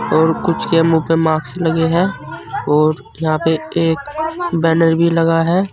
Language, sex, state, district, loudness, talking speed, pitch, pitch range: Hindi, male, Uttar Pradesh, Saharanpur, -16 LUFS, 165 wpm, 165 Hz, 160-170 Hz